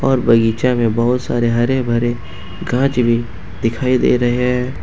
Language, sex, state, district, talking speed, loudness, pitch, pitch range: Hindi, male, Jharkhand, Ranchi, 160 wpm, -16 LUFS, 120 Hz, 115-125 Hz